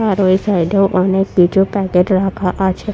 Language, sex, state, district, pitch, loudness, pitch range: Bengali, female, West Bengal, Purulia, 190 Hz, -14 LUFS, 185-195 Hz